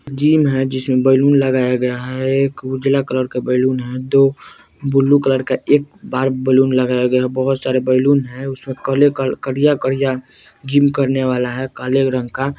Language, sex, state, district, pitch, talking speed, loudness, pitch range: Bajjika, male, Bihar, Vaishali, 130 Hz, 175 wpm, -16 LUFS, 130-135 Hz